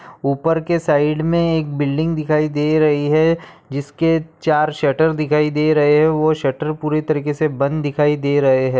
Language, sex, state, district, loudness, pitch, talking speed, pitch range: Hindi, male, Maharashtra, Aurangabad, -17 LUFS, 150 Hz, 175 wpm, 145-155 Hz